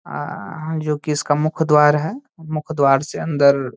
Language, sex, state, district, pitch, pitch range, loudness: Hindi, male, Bihar, Saharsa, 150 Hz, 145-160 Hz, -19 LUFS